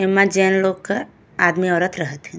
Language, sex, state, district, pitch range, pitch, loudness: Bhojpuri, female, Uttar Pradesh, Gorakhpur, 175-190 Hz, 185 Hz, -18 LUFS